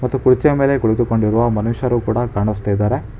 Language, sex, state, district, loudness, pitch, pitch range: Kannada, male, Karnataka, Bangalore, -17 LUFS, 120 Hz, 110-125 Hz